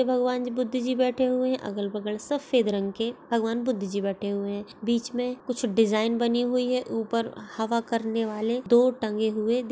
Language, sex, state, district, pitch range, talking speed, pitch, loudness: Hindi, female, Maharashtra, Pune, 215-250 Hz, 200 wpm, 235 Hz, -27 LUFS